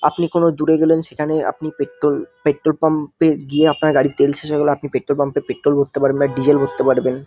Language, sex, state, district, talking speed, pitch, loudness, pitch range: Bengali, male, West Bengal, North 24 Parganas, 230 wpm, 150 Hz, -17 LUFS, 140-155 Hz